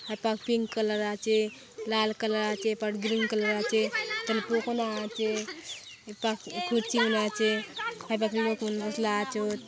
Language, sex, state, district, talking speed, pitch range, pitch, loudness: Halbi, female, Chhattisgarh, Bastar, 100 wpm, 215-225 Hz, 220 Hz, -29 LUFS